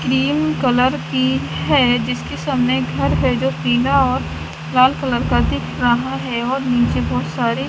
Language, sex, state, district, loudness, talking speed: Hindi, female, Haryana, Charkhi Dadri, -18 LUFS, 170 wpm